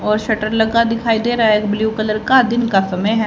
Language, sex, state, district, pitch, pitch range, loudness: Hindi, female, Haryana, Rohtak, 220 Hz, 215-230 Hz, -16 LUFS